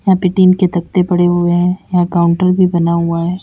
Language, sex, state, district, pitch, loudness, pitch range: Hindi, female, Uttar Pradesh, Lalitpur, 180 Hz, -13 LUFS, 175-185 Hz